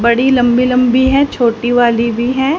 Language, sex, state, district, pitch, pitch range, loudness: Hindi, female, Haryana, Charkhi Dadri, 245 Hz, 235-260 Hz, -12 LUFS